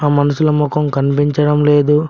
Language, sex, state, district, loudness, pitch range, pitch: Telugu, male, Telangana, Mahabubabad, -14 LUFS, 145-150 Hz, 150 Hz